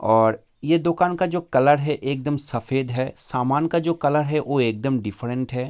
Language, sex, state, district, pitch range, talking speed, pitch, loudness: Hindi, male, Bihar, Kishanganj, 125-150 Hz, 180 wpm, 140 Hz, -22 LUFS